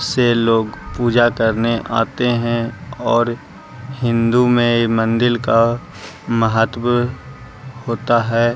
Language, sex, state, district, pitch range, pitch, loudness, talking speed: Hindi, male, Bihar, Gaya, 115-120 Hz, 120 Hz, -17 LUFS, 90 wpm